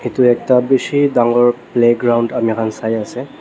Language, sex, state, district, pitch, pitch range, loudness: Nagamese, male, Nagaland, Dimapur, 120 Hz, 115-125 Hz, -15 LUFS